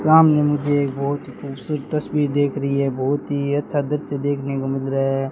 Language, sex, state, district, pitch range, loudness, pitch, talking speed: Hindi, male, Rajasthan, Bikaner, 135-145 Hz, -21 LUFS, 140 Hz, 205 wpm